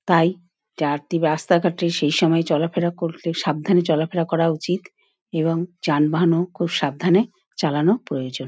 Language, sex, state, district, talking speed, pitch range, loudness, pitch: Bengali, female, West Bengal, Paschim Medinipur, 150 wpm, 155-175 Hz, -21 LUFS, 170 Hz